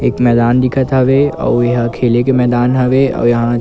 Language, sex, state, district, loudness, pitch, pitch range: Chhattisgarhi, male, Chhattisgarh, Kabirdham, -12 LUFS, 125 Hz, 120-130 Hz